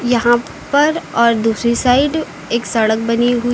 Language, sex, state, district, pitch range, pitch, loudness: Hindi, female, Uttar Pradesh, Lucknow, 235-250 Hz, 240 Hz, -15 LUFS